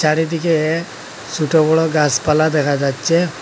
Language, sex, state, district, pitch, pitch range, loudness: Bengali, male, Assam, Hailakandi, 155 Hz, 150-160 Hz, -16 LUFS